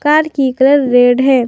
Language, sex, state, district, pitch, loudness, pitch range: Hindi, female, Jharkhand, Ranchi, 270 Hz, -11 LUFS, 250-290 Hz